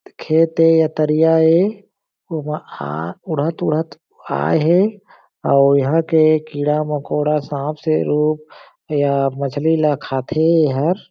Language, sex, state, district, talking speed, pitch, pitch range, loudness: Chhattisgarhi, male, Chhattisgarh, Jashpur, 130 wpm, 155 Hz, 145-165 Hz, -17 LUFS